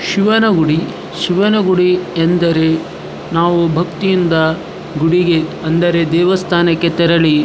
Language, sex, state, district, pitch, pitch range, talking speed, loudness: Kannada, male, Karnataka, Dharwad, 170 Hz, 165-180 Hz, 105 wpm, -14 LUFS